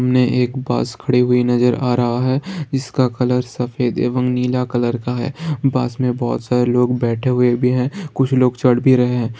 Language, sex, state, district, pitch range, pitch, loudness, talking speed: Hindi, male, Bihar, Saran, 125-130 Hz, 125 Hz, -17 LUFS, 210 wpm